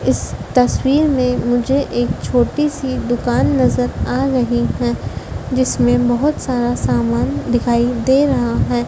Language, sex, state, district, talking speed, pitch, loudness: Hindi, female, Madhya Pradesh, Dhar, 135 wpm, 240 Hz, -16 LUFS